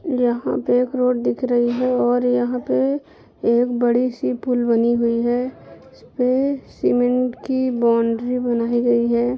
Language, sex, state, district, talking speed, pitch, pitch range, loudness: Hindi, female, Jharkhand, Jamtara, 155 wpm, 245 Hz, 240-255 Hz, -20 LUFS